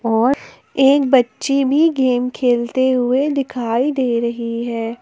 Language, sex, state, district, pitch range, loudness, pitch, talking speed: Hindi, female, Jharkhand, Ranchi, 235-270 Hz, -17 LUFS, 250 Hz, 130 wpm